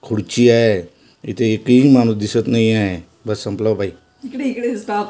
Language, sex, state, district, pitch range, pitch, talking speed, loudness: Marathi, male, Maharashtra, Washim, 105-135 Hz, 115 Hz, 140 wpm, -16 LUFS